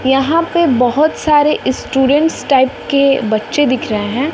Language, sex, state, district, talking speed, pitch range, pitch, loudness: Hindi, female, Bihar, West Champaran, 150 wpm, 255-300 Hz, 275 Hz, -13 LUFS